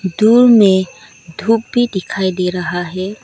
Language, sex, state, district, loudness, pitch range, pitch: Hindi, female, Arunachal Pradesh, Lower Dibang Valley, -14 LUFS, 180-220 Hz, 190 Hz